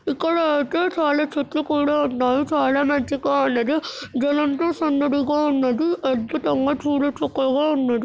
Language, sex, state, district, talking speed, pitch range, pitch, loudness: Telugu, male, Andhra Pradesh, Krishna, 105 wpm, 275-305 Hz, 290 Hz, -21 LUFS